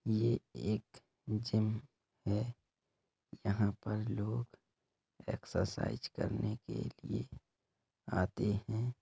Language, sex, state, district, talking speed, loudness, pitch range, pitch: Hindi, male, Uttar Pradesh, Jalaun, 85 wpm, -38 LUFS, 105-115 Hz, 110 Hz